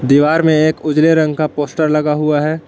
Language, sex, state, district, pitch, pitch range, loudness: Hindi, male, Jharkhand, Palamu, 155 Hz, 150-155 Hz, -14 LUFS